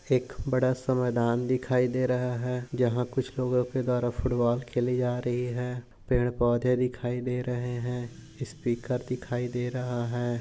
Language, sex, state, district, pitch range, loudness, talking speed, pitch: Hindi, male, Maharashtra, Nagpur, 120-125 Hz, -29 LUFS, 165 wpm, 125 Hz